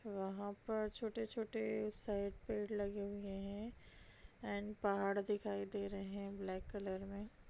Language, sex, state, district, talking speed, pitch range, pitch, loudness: Hindi, female, Bihar, Kishanganj, 135 wpm, 200-215 Hz, 205 Hz, -43 LUFS